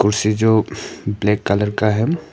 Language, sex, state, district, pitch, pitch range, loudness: Hindi, male, Arunachal Pradesh, Papum Pare, 105 Hz, 105-110 Hz, -18 LUFS